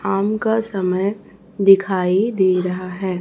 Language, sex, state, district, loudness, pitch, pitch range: Hindi, female, Chhattisgarh, Raipur, -18 LUFS, 195 Hz, 185-205 Hz